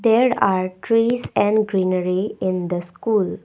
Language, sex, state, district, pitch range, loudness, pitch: English, female, Assam, Kamrup Metropolitan, 185-225 Hz, -20 LUFS, 195 Hz